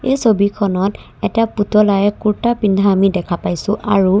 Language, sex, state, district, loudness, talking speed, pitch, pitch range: Assamese, female, Assam, Kamrup Metropolitan, -16 LUFS, 155 wpm, 205 Hz, 195-210 Hz